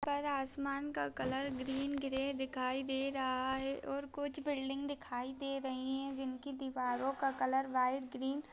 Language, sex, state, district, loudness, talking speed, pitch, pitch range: Hindi, female, Chhattisgarh, Kabirdham, -38 LUFS, 170 wpm, 270 Hz, 260-275 Hz